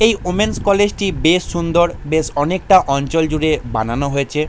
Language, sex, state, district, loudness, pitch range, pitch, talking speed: Bengali, male, West Bengal, Jalpaiguri, -16 LUFS, 145-185 Hz, 160 Hz, 160 wpm